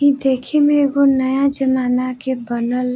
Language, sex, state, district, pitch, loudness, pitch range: Bhojpuri, female, Uttar Pradesh, Varanasi, 265 Hz, -16 LUFS, 250-280 Hz